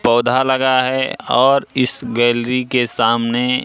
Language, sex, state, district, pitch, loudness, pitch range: Hindi, male, Madhya Pradesh, Katni, 125 Hz, -16 LUFS, 120-130 Hz